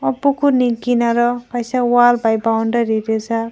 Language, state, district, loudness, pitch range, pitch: Kokborok, Tripura, Dhalai, -16 LUFS, 225-245 Hz, 235 Hz